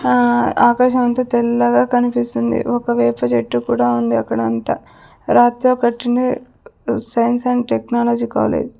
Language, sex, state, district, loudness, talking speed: Telugu, female, Andhra Pradesh, Sri Satya Sai, -16 LUFS, 115 wpm